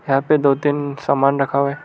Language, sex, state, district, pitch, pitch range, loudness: Hindi, male, Arunachal Pradesh, Lower Dibang Valley, 140 Hz, 140-145 Hz, -18 LUFS